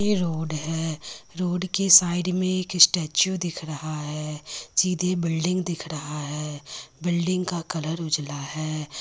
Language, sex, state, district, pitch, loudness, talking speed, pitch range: Hindi, female, Bihar, Lakhisarai, 165 Hz, -24 LUFS, 155 wpm, 155-180 Hz